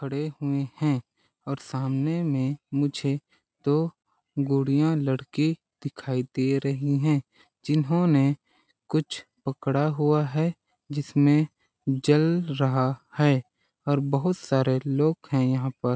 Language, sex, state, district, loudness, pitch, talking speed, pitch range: Hindi, male, Chhattisgarh, Balrampur, -26 LUFS, 140 Hz, 115 wpm, 135-150 Hz